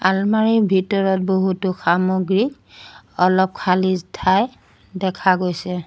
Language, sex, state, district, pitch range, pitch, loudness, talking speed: Assamese, female, Assam, Sonitpur, 185-195 Hz, 190 Hz, -19 LUFS, 90 wpm